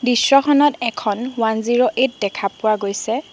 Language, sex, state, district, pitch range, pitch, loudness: Assamese, female, Assam, Sonitpur, 215-260 Hz, 235 Hz, -18 LUFS